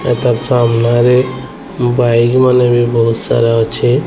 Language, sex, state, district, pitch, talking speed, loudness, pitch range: Odia, male, Odisha, Sambalpur, 120 Hz, 120 wpm, -12 LUFS, 115-125 Hz